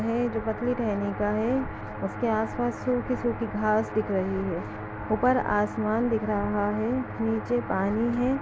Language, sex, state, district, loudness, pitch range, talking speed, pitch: Hindi, female, Uttar Pradesh, Etah, -27 LUFS, 205-240 Hz, 165 wpm, 220 Hz